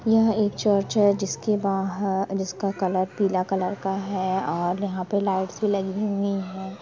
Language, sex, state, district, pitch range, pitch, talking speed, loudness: Hindi, female, Chhattisgarh, Rajnandgaon, 190-200 Hz, 195 Hz, 165 wpm, -25 LUFS